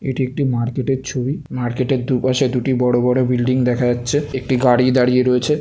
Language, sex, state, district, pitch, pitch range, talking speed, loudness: Bengali, male, West Bengal, North 24 Parganas, 130 Hz, 125-135 Hz, 205 wpm, -18 LUFS